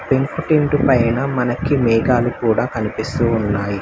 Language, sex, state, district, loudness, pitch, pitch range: Telugu, male, Telangana, Hyderabad, -17 LUFS, 125 Hz, 115-140 Hz